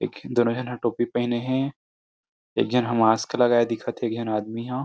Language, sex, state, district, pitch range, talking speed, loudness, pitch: Chhattisgarhi, male, Chhattisgarh, Rajnandgaon, 115-125 Hz, 225 wpm, -24 LUFS, 120 Hz